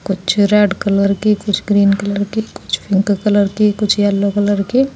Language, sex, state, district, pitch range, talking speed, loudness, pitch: Hindi, female, Uttar Pradesh, Saharanpur, 200-210 Hz, 205 wpm, -15 LUFS, 205 Hz